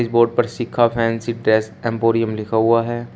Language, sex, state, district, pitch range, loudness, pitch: Hindi, male, Uttar Pradesh, Shamli, 115-120 Hz, -18 LUFS, 115 Hz